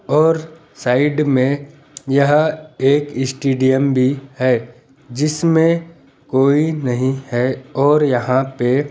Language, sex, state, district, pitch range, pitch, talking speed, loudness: Hindi, male, Madhya Pradesh, Bhopal, 130-150 Hz, 140 Hz, 100 wpm, -17 LUFS